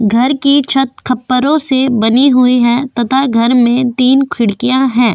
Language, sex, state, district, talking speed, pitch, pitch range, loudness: Hindi, female, Goa, North and South Goa, 165 wpm, 250 Hz, 240-265 Hz, -11 LUFS